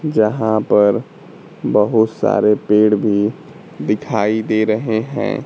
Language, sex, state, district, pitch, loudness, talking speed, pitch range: Hindi, male, Bihar, Kaimur, 110 Hz, -16 LUFS, 110 wpm, 105-115 Hz